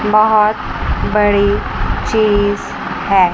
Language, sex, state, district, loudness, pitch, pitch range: Hindi, male, Chandigarh, Chandigarh, -15 LUFS, 210 Hz, 200-215 Hz